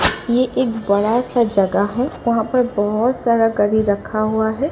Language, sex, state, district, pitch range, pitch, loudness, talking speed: Hindi, female, Uttar Pradesh, Jalaun, 210-245 Hz, 225 Hz, -18 LUFS, 180 wpm